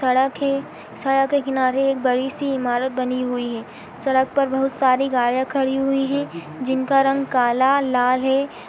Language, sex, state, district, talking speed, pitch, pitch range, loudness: Hindi, female, Uttar Pradesh, Etah, 180 wpm, 265 Hz, 255-270 Hz, -20 LUFS